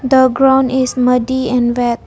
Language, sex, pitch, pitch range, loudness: English, female, 255 Hz, 245-260 Hz, -13 LUFS